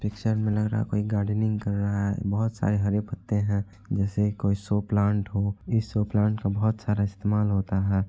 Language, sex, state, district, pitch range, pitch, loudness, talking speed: Hindi, male, Bihar, Araria, 100-105 Hz, 105 Hz, -26 LUFS, 220 wpm